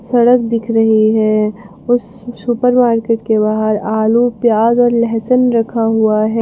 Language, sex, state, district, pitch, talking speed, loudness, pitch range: Hindi, female, Jharkhand, Palamu, 230 Hz, 150 wpm, -13 LUFS, 220-240 Hz